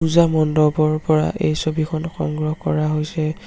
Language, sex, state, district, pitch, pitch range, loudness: Assamese, male, Assam, Sonitpur, 155 Hz, 155-160 Hz, -19 LUFS